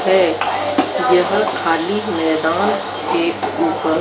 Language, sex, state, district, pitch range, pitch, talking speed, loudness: Hindi, female, Madhya Pradesh, Dhar, 160-200 Hz, 180 Hz, 75 wpm, -17 LUFS